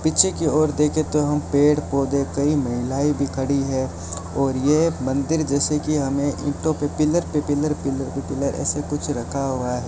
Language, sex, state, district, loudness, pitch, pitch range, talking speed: Hindi, male, Rajasthan, Bikaner, -21 LUFS, 145 Hz, 135-150 Hz, 195 wpm